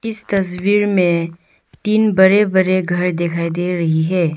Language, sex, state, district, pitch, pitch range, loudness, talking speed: Hindi, female, Arunachal Pradesh, Longding, 185 Hz, 170-200 Hz, -16 LUFS, 150 wpm